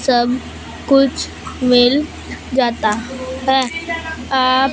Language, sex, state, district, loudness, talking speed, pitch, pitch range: Hindi, female, Punjab, Fazilka, -17 LUFS, 75 wpm, 260 Hz, 250-270 Hz